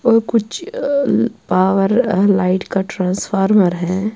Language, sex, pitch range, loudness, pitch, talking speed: Urdu, female, 190-230 Hz, -16 LUFS, 200 Hz, 145 wpm